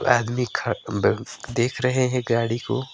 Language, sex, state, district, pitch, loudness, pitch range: Hindi, male, West Bengal, Alipurduar, 125 Hz, -23 LUFS, 120-130 Hz